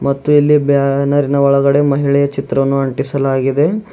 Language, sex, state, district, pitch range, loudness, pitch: Kannada, male, Karnataka, Bidar, 140-145 Hz, -13 LUFS, 140 Hz